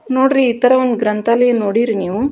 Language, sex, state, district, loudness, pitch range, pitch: Kannada, female, Karnataka, Dharwad, -14 LUFS, 215-255 Hz, 235 Hz